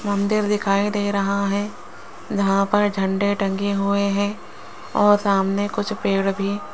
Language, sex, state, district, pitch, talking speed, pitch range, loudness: Hindi, female, Rajasthan, Jaipur, 200 Hz, 150 wpm, 195-205 Hz, -21 LUFS